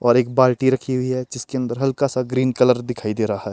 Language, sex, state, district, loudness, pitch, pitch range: Hindi, male, Himachal Pradesh, Shimla, -20 LUFS, 125 Hz, 120-130 Hz